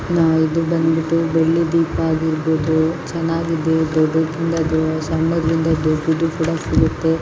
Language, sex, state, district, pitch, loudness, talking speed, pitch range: Kannada, female, Karnataka, Mysore, 160 Hz, -18 LUFS, 100 wpm, 160-165 Hz